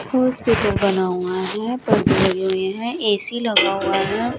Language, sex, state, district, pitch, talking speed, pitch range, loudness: Hindi, female, Chandigarh, Chandigarh, 205 Hz, 165 wpm, 190-235 Hz, -19 LUFS